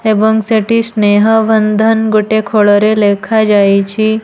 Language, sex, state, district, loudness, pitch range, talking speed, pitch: Odia, female, Odisha, Nuapada, -10 LUFS, 210-220 Hz, 85 wpm, 215 Hz